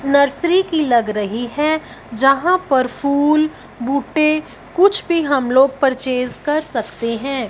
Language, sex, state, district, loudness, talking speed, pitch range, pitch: Hindi, female, Punjab, Fazilka, -17 LUFS, 130 wpm, 250-310 Hz, 275 Hz